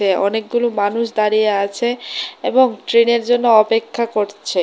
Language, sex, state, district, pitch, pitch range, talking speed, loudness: Bengali, female, Tripura, West Tripura, 225 Hz, 205-235 Hz, 130 wpm, -16 LUFS